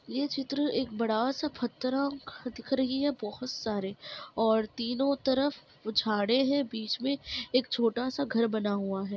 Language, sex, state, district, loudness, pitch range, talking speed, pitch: Hindi, female, Bihar, Madhepura, -30 LUFS, 220-275 Hz, 165 wpm, 250 Hz